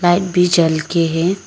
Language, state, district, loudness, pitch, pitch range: Hindi, Arunachal Pradesh, Lower Dibang Valley, -15 LUFS, 175 Hz, 165-180 Hz